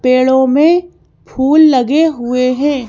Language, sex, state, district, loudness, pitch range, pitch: Hindi, female, Madhya Pradesh, Bhopal, -11 LUFS, 255-305 Hz, 265 Hz